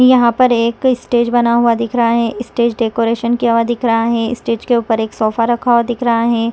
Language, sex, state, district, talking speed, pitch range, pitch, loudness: Hindi, female, Chhattisgarh, Raigarh, 240 wpm, 230-240 Hz, 235 Hz, -14 LUFS